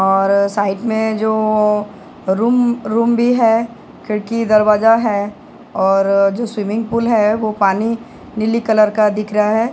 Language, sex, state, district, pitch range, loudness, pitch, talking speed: Hindi, female, Odisha, Sambalpur, 210-230 Hz, -15 LUFS, 215 Hz, 155 wpm